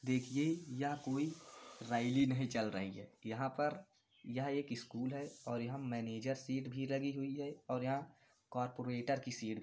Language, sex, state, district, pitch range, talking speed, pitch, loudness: Hindi, male, Uttar Pradesh, Varanasi, 120-140 Hz, 175 wpm, 130 Hz, -40 LUFS